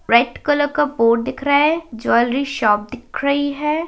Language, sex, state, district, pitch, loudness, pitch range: Hindi, female, Uttarakhand, Tehri Garhwal, 280 Hz, -18 LUFS, 235-290 Hz